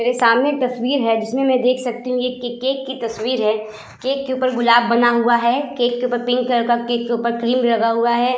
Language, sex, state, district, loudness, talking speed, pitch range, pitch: Hindi, female, Uttar Pradesh, Budaun, -18 LUFS, 255 wpm, 235-255 Hz, 245 Hz